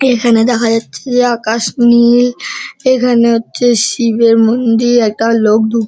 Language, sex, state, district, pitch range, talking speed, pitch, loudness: Bengali, male, West Bengal, Dakshin Dinajpur, 225-245 Hz, 135 wpm, 235 Hz, -11 LUFS